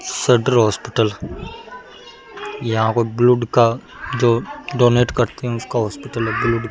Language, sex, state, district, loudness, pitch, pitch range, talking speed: Hindi, male, Jharkhand, Sahebganj, -18 LUFS, 120 Hz, 115-140 Hz, 135 wpm